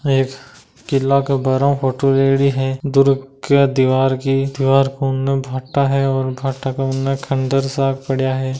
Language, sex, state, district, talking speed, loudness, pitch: Marwari, male, Rajasthan, Nagaur, 165 wpm, -17 LUFS, 135 Hz